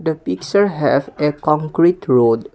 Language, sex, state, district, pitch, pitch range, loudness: English, male, Assam, Kamrup Metropolitan, 150 Hz, 140-170 Hz, -16 LUFS